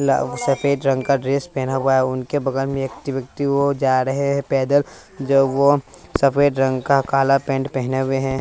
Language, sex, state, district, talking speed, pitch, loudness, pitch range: Hindi, male, Bihar, West Champaran, 200 wpm, 135 Hz, -19 LUFS, 135-140 Hz